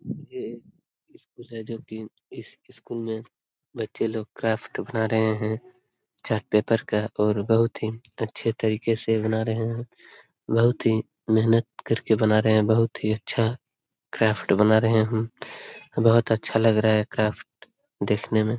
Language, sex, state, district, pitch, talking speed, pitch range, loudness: Hindi, male, Bihar, Lakhisarai, 110 Hz, 170 wpm, 110-115 Hz, -24 LUFS